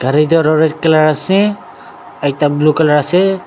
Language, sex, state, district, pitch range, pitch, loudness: Nagamese, male, Nagaland, Dimapur, 145-165 Hz, 155 Hz, -12 LUFS